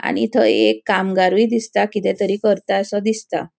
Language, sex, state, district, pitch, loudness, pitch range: Konkani, female, Goa, North and South Goa, 200 Hz, -18 LUFS, 190-220 Hz